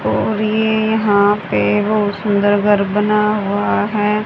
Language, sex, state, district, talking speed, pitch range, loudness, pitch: Hindi, female, Haryana, Charkhi Dadri, 140 wpm, 200-215 Hz, -15 LUFS, 210 Hz